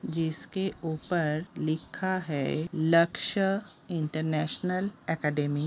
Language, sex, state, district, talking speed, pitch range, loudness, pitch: Hindi, female, Bihar, Begusarai, 85 wpm, 155-185 Hz, -30 LUFS, 160 Hz